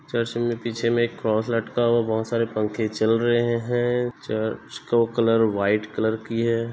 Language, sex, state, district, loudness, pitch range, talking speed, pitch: Hindi, male, Chhattisgarh, Bastar, -23 LUFS, 110-120 Hz, 195 wpm, 115 Hz